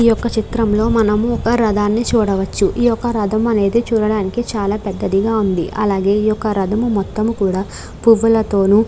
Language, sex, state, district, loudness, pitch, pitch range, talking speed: Telugu, female, Andhra Pradesh, Krishna, -16 LUFS, 215 Hz, 200-225 Hz, 170 wpm